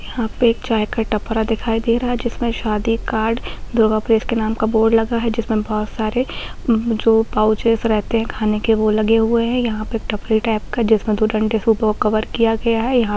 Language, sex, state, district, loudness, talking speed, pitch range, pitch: Hindi, female, Bihar, Muzaffarpur, -18 LUFS, 235 wpm, 215-230 Hz, 225 Hz